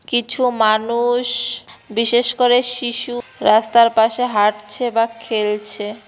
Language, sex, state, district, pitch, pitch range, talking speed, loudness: Bengali, female, West Bengal, Cooch Behar, 235 Hz, 215-245 Hz, 100 wpm, -17 LUFS